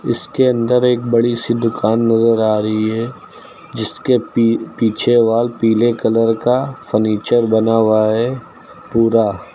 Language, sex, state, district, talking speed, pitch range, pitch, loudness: Hindi, male, Uttar Pradesh, Lucknow, 140 wpm, 110-120 Hz, 115 Hz, -15 LUFS